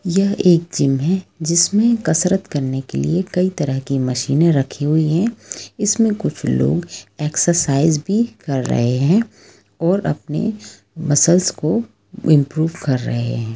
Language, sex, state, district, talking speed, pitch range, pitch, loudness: Hindi, female, Jharkhand, Sahebganj, 140 wpm, 145-190 Hz, 165 Hz, -17 LUFS